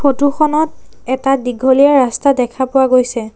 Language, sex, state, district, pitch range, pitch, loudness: Assamese, female, Assam, Sonitpur, 255-280 Hz, 265 Hz, -13 LUFS